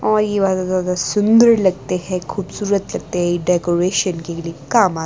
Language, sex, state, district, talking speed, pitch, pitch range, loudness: Hindi, female, Himachal Pradesh, Shimla, 155 wpm, 185 Hz, 175-205 Hz, -17 LUFS